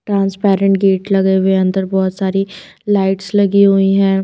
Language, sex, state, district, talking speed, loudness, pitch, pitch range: Hindi, female, Himachal Pradesh, Shimla, 170 wpm, -14 LUFS, 195 Hz, 190-195 Hz